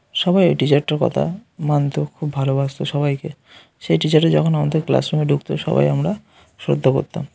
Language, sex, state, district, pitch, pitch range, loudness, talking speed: Bengali, male, West Bengal, North 24 Parganas, 150 Hz, 140-160 Hz, -19 LUFS, 170 wpm